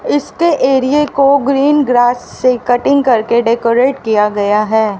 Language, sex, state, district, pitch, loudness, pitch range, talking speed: Hindi, female, Haryana, Rohtak, 250 Hz, -12 LUFS, 230-275 Hz, 145 wpm